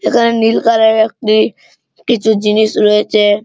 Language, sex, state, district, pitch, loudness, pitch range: Bengali, male, West Bengal, Malda, 220 Hz, -12 LUFS, 210-225 Hz